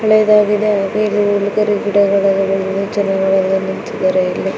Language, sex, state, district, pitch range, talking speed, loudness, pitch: Kannada, female, Karnataka, Dakshina Kannada, 195-210 Hz, 105 wpm, -15 LUFS, 200 Hz